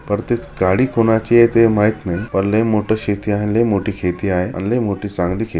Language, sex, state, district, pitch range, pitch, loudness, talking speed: Marathi, male, Maharashtra, Chandrapur, 95-115 Hz, 105 Hz, -17 LUFS, 245 wpm